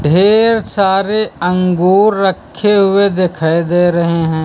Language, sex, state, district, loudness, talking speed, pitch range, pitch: Hindi, male, Uttar Pradesh, Lucknow, -12 LUFS, 120 wpm, 170-200 Hz, 185 Hz